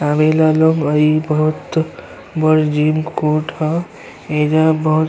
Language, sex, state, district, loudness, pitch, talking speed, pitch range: Bhojpuri, male, Uttar Pradesh, Ghazipur, -16 LUFS, 155 Hz, 140 wpm, 150-160 Hz